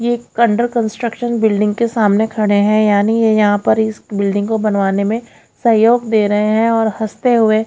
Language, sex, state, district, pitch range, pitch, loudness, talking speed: Hindi, female, Haryana, Jhajjar, 210-230 Hz, 220 Hz, -15 LUFS, 195 wpm